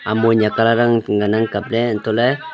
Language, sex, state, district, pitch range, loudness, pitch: Wancho, male, Arunachal Pradesh, Longding, 110-120 Hz, -17 LUFS, 115 Hz